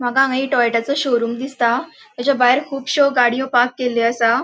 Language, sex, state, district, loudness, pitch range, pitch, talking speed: Konkani, female, Goa, North and South Goa, -17 LUFS, 240-275 Hz, 250 Hz, 175 wpm